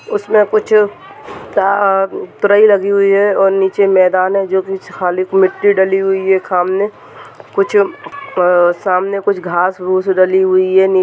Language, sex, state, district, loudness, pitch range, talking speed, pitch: Hindi, male, Bihar, Jahanabad, -13 LUFS, 185-200 Hz, 165 wpm, 195 Hz